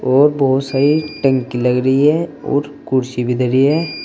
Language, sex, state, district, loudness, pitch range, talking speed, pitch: Hindi, male, Uttar Pradesh, Saharanpur, -16 LUFS, 130-145 Hz, 175 wpm, 135 Hz